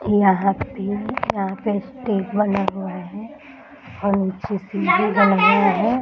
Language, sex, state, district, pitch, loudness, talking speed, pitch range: Hindi, female, Bihar, Muzaffarpur, 200 Hz, -20 LUFS, 150 wpm, 195-215 Hz